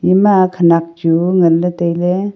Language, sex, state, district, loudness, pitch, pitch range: Wancho, female, Arunachal Pradesh, Longding, -13 LUFS, 175 Hz, 170-185 Hz